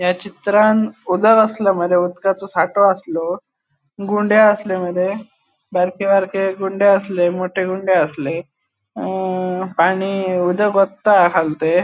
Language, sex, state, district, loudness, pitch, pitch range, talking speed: Konkani, male, Goa, North and South Goa, -17 LUFS, 190 Hz, 180-200 Hz, 115 wpm